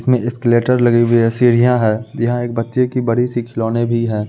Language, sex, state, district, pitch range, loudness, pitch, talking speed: Hindi, male, Bihar, Muzaffarpur, 115-125 Hz, -15 LUFS, 120 Hz, 210 wpm